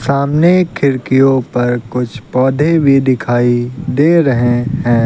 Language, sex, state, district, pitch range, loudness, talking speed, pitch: Hindi, male, Uttar Pradesh, Lucknow, 120-145 Hz, -13 LUFS, 120 wpm, 130 Hz